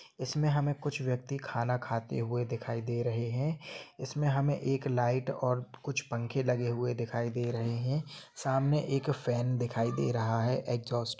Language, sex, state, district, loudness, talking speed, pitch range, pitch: Hindi, male, Jharkhand, Jamtara, -33 LUFS, 170 wpm, 120-140 Hz, 125 Hz